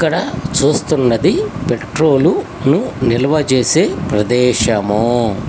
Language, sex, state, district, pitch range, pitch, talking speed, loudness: Telugu, male, Telangana, Hyderabad, 110-130 Hz, 120 Hz, 75 wpm, -14 LUFS